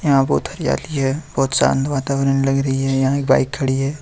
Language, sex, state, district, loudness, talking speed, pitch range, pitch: Hindi, male, Jharkhand, Deoghar, -18 LUFS, 225 wpm, 135-140 Hz, 135 Hz